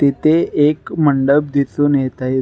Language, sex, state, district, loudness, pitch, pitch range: Marathi, male, Maharashtra, Nagpur, -15 LUFS, 145 Hz, 135-150 Hz